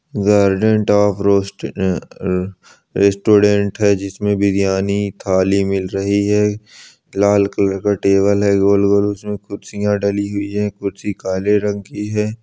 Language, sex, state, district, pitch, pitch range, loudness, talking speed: Angika, male, Bihar, Samastipur, 100 Hz, 100-105 Hz, -17 LUFS, 135 wpm